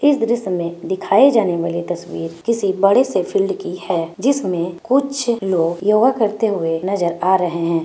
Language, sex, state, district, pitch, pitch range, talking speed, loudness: Magahi, female, Bihar, Gaya, 190 Hz, 170-235 Hz, 185 wpm, -18 LUFS